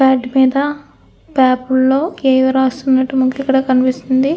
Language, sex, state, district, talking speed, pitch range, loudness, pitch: Telugu, female, Andhra Pradesh, Anantapur, 125 wpm, 260-270 Hz, -14 LUFS, 265 Hz